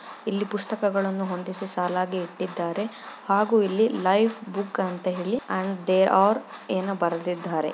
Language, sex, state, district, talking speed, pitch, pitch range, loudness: Kannada, female, Karnataka, Chamarajanagar, 125 wpm, 190 Hz, 180-205 Hz, -25 LUFS